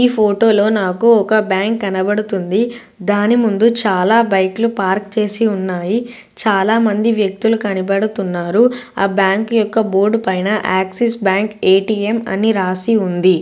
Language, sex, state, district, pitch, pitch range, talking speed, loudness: Telugu, female, Telangana, Nalgonda, 210 Hz, 190-225 Hz, 130 wpm, -15 LUFS